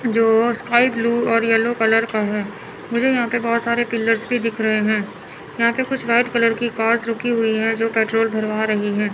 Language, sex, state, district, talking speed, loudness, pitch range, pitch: Hindi, male, Chandigarh, Chandigarh, 215 wpm, -19 LUFS, 220-235 Hz, 230 Hz